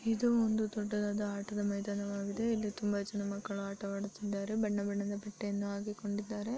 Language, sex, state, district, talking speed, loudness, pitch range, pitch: Kannada, female, Karnataka, Dharwad, 120 wpm, -36 LUFS, 200-210 Hz, 205 Hz